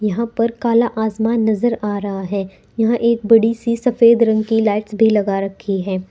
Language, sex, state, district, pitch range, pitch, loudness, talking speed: Hindi, female, Uttar Pradesh, Saharanpur, 205-230 Hz, 220 Hz, -17 LUFS, 195 wpm